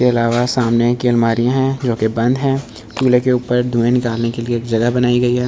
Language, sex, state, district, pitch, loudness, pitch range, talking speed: Hindi, male, Delhi, New Delhi, 120 Hz, -16 LUFS, 115-125 Hz, 230 wpm